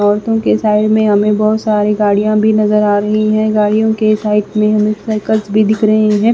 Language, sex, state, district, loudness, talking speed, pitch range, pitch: Hindi, female, Bihar, West Champaran, -12 LUFS, 215 wpm, 210-215 Hz, 215 Hz